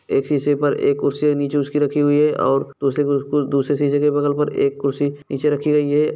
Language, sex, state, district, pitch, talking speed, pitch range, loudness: Hindi, male, Bihar, Gaya, 145 Hz, 225 wpm, 140-145 Hz, -19 LUFS